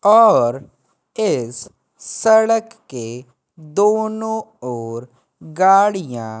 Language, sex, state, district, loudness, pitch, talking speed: Hindi, male, Madhya Pradesh, Katni, -17 LUFS, 155 Hz, 65 wpm